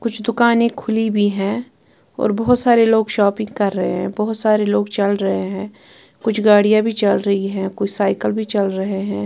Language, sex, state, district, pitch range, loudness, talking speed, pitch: Hindi, female, Punjab, Kapurthala, 200-225 Hz, -17 LUFS, 200 wpm, 210 Hz